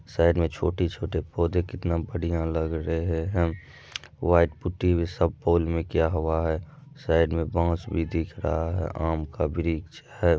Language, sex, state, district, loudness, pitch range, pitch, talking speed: Maithili, male, Bihar, Madhepura, -26 LUFS, 80-85 Hz, 85 Hz, 170 wpm